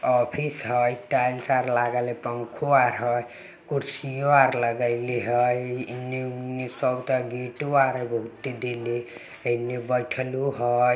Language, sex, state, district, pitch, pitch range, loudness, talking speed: Maithili, male, Bihar, Samastipur, 125 Hz, 120-130 Hz, -25 LUFS, 125 wpm